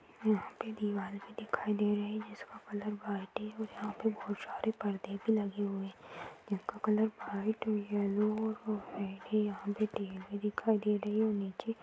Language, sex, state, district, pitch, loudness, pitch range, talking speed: Hindi, female, Uttar Pradesh, Deoria, 210 Hz, -36 LUFS, 200-220 Hz, 175 wpm